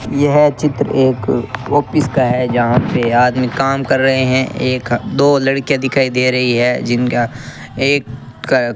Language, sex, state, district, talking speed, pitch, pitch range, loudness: Hindi, male, Rajasthan, Bikaner, 155 wpm, 130 Hz, 125-135 Hz, -14 LUFS